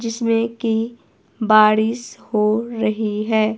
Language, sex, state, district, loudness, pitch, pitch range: Hindi, female, Himachal Pradesh, Shimla, -19 LUFS, 225 Hz, 215-230 Hz